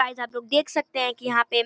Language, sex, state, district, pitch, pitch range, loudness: Maithili, female, Bihar, Darbhanga, 250 Hz, 240-275 Hz, -24 LUFS